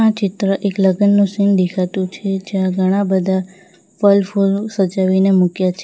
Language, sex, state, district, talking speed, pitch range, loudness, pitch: Gujarati, female, Gujarat, Valsad, 145 wpm, 185-200 Hz, -16 LUFS, 195 Hz